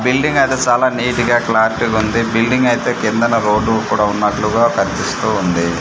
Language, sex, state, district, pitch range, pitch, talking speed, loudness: Telugu, male, Andhra Pradesh, Manyam, 105-120 Hz, 115 Hz, 165 wpm, -15 LUFS